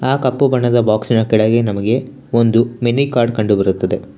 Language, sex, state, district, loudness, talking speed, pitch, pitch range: Kannada, male, Karnataka, Bangalore, -15 LUFS, 160 wpm, 115 Hz, 110-125 Hz